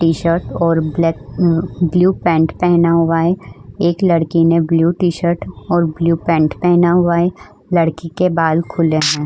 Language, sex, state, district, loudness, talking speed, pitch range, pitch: Hindi, female, Uttar Pradesh, Budaun, -15 LUFS, 155 wpm, 165-175 Hz, 170 Hz